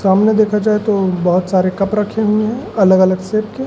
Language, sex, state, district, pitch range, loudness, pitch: Hindi, male, Madhya Pradesh, Umaria, 190-215 Hz, -14 LUFS, 210 Hz